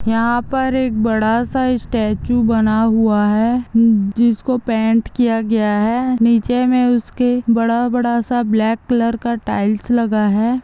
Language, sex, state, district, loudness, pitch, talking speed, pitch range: Hindi, female, Andhra Pradesh, Chittoor, -16 LUFS, 230 Hz, 120 wpm, 220-245 Hz